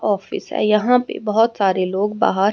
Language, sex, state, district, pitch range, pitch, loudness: Hindi, female, Haryana, Rohtak, 195-220 Hz, 210 Hz, -18 LUFS